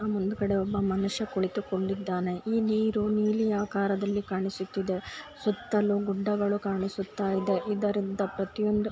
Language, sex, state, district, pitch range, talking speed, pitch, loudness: Kannada, female, Karnataka, Bijapur, 195-210 Hz, 110 wpm, 200 Hz, -29 LUFS